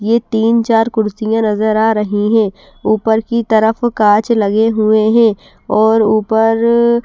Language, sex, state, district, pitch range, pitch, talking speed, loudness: Hindi, female, Bihar, West Champaran, 215-230 Hz, 220 Hz, 145 wpm, -13 LUFS